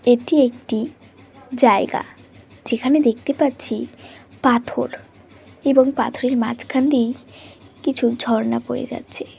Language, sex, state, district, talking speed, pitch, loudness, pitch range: Bengali, female, West Bengal, Jalpaiguri, 75 wpm, 255 Hz, -19 LUFS, 235-275 Hz